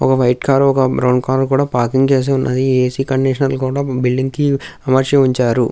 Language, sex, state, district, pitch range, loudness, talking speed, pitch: Telugu, male, Andhra Pradesh, Krishna, 125-135 Hz, -15 LUFS, 190 wpm, 130 Hz